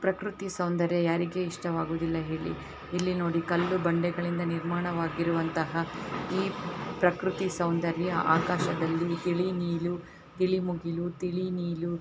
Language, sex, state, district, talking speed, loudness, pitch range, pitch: Kannada, female, Karnataka, Bellary, 110 wpm, -30 LUFS, 170-180 Hz, 175 Hz